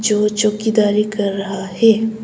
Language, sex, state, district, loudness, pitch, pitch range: Hindi, female, Arunachal Pradesh, Papum Pare, -16 LUFS, 210 Hz, 205-220 Hz